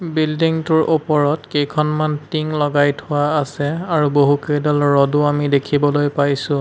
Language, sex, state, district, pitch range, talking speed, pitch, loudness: Assamese, male, Assam, Sonitpur, 145-155 Hz, 120 wpm, 145 Hz, -17 LUFS